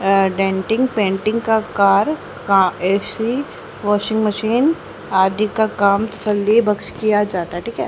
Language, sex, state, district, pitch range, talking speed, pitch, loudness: Hindi, female, Haryana, Charkhi Dadri, 195-225 Hz, 145 wpm, 210 Hz, -18 LUFS